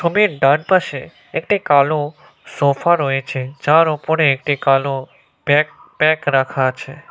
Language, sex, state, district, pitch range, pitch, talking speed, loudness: Bengali, male, West Bengal, Cooch Behar, 135-160 Hz, 145 Hz, 125 wpm, -17 LUFS